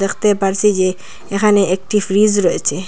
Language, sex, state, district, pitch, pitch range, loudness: Bengali, female, Assam, Hailakandi, 200 Hz, 190-210 Hz, -15 LUFS